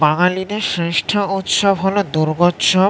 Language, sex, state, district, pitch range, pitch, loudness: Bengali, male, West Bengal, North 24 Parganas, 170-200 Hz, 185 Hz, -16 LUFS